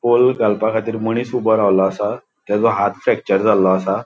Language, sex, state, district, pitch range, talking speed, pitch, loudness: Konkani, male, Goa, North and South Goa, 95-120 Hz, 160 wpm, 110 Hz, -17 LUFS